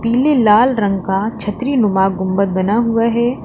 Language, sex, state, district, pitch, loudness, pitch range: Hindi, female, Uttar Pradesh, Lalitpur, 215 Hz, -15 LUFS, 195-235 Hz